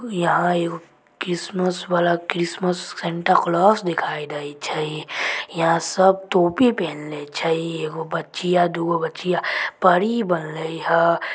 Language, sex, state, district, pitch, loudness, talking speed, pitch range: Maithili, female, Bihar, Samastipur, 170 Hz, -21 LUFS, 120 wpm, 165-180 Hz